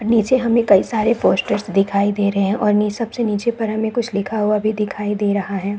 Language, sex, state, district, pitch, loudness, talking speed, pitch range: Hindi, female, Bihar, Saran, 210 Hz, -18 LUFS, 240 wpm, 200-225 Hz